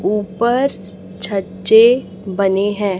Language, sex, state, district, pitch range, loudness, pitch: Hindi, female, Chhattisgarh, Raipur, 195-225 Hz, -15 LUFS, 205 Hz